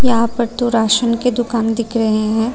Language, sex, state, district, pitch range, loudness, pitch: Hindi, female, Tripura, Unakoti, 225-240 Hz, -16 LUFS, 230 Hz